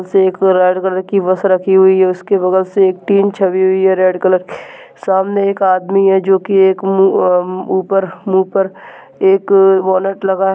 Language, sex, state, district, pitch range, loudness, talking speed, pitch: Hindi, male, Chhattisgarh, Balrampur, 185-195 Hz, -13 LUFS, 200 wpm, 190 Hz